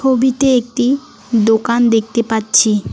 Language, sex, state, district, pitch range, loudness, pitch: Bengali, female, West Bengal, Alipurduar, 225-260 Hz, -14 LUFS, 235 Hz